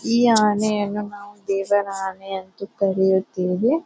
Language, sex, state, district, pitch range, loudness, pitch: Kannada, female, Karnataka, Bijapur, 190-210 Hz, -21 LUFS, 205 Hz